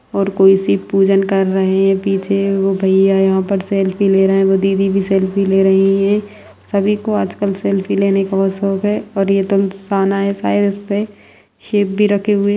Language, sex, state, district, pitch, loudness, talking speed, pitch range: Hindi, female, Bihar, Sitamarhi, 195 Hz, -15 LUFS, 205 wpm, 195-200 Hz